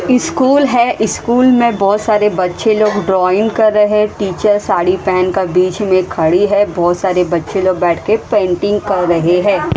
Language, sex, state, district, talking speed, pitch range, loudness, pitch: Hindi, female, Haryana, Rohtak, 180 wpm, 180-215 Hz, -13 LUFS, 200 Hz